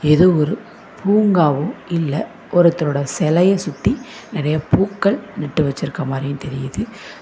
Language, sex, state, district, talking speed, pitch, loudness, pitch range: Tamil, female, Tamil Nadu, Namakkal, 110 wpm, 170 Hz, -18 LUFS, 150-205 Hz